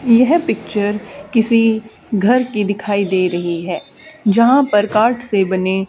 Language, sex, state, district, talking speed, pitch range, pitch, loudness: Hindi, female, Haryana, Charkhi Dadri, 155 wpm, 195-235 Hz, 210 Hz, -16 LUFS